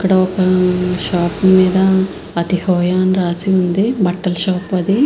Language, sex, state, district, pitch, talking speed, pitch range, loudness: Telugu, female, Andhra Pradesh, Visakhapatnam, 185 Hz, 130 wpm, 180-190 Hz, -15 LUFS